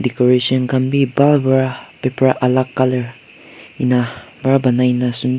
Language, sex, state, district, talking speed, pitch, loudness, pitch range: Nagamese, male, Nagaland, Kohima, 145 wpm, 130 Hz, -16 LUFS, 125-130 Hz